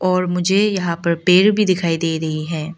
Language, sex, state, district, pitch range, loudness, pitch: Hindi, female, Arunachal Pradesh, Lower Dibang Valley, 165-185 Hz, -17 LUFS, 180 Hz